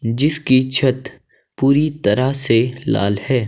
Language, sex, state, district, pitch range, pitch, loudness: Hindi, male, Himachal Pradesh, Shimla, 115-135 Hz, 130 Hz, -17 LUFS